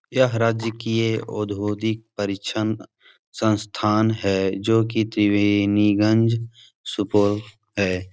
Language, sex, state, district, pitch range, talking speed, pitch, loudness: Hindi, male, Bihar, Supaul, 105-115 Hz, 80 wpm, 105 Hz, -22 LUFS